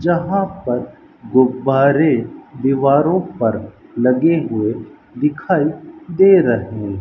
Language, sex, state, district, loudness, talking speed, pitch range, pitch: Hindi, male, Rajasthan, Bikaner, -16 LUFS, 95 wpm, 120-175 Hz, 140 Hz